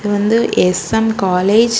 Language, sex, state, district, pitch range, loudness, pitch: Tamil, female, Tamil Nadu, Kanyakumari, 195-225 Hz, -14 LUFS, 215 Hz